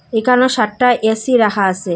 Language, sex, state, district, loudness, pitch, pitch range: Bengali, female, Assam, Hailakandi, -14 LUFS, 220 Hz, 210-250 Hz